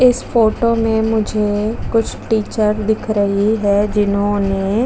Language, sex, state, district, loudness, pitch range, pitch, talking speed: Hindi, female, Chhattisgarh, Jashpur, -16 LUFS, 205-225 Hz, 215 Hz, 135 wpm